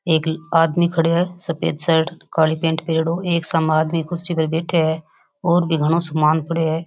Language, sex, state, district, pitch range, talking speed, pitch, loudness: Rajasthani, female, Rajasthan, Nagaur, 160-170 Hz, 190 wpm, 165 Hz, -19 LUFS